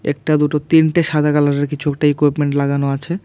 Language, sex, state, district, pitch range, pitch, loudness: Bengali, male, Tripura, West Tripura, 145-150 Hz, 150 Hz, -16 LUFS